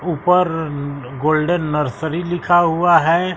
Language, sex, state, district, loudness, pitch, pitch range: Hindi, male, Bihar, West Champaran, -17 LUFS, 165 Hz, 155-175 Hz